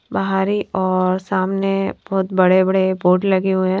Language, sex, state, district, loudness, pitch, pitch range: Hindi, female, Punjab, Fazilka, -18 LUFS, 190 Hz, 185-195 Hz